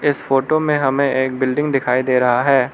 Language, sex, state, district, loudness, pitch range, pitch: Hindi, male, Arunachal Pradesh, Lower Dibang Valley, -17 LUFS, 130-140 Hz, 135 Hz